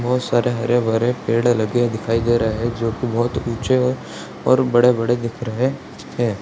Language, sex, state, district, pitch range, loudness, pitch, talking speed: Hindi, male, Bihar, Purnia, 115-125 Hz, -19 LUFS, 120 Hz, 170 wpm